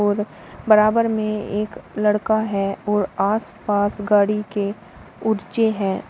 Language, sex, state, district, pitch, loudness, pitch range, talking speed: Hindi, female, Uttar Pradesh, Shamli, 210 Hz, -21 LUFS, 205-215 Hz, 120 wpm